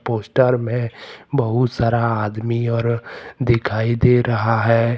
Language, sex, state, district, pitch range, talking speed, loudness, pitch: Hindi, male, Jharkhand, Deoghar, 115-120 Hz, 120 wpm, -19 LUFS, 115 Hz